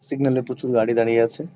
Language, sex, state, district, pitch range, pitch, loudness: Bengali, male, West Bengal, Kolkata, 115-140 Hz, 125 Hz, -21 LUFS